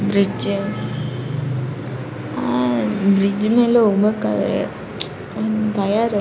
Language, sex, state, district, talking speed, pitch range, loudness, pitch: Kannada, female, Karnataka, Raichur, 85 wpm, 130-210 Hz, -20 LUFS, 195 Hz